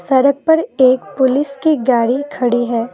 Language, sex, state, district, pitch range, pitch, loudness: Hindi, female, Assam, Kamrup Metropolitan, 245-280 Hz, 260 Hz, -15 LUFS